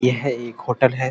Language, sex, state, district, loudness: Hindi, male, Uttar Pradesh, Muzaffarnagar, -22 LUFS